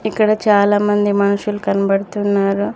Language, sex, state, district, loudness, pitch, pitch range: Telugu, female, Telangana, Mahabubabad, -16 LUFS, 205 Hz, 200-210 Hz